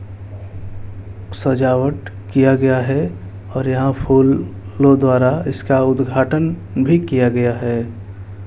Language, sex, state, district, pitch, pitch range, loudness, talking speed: Hindi, male, Bihar, Kaimur, 125 Hz, 100-135 Hz, -16 LUFS, 100 wpm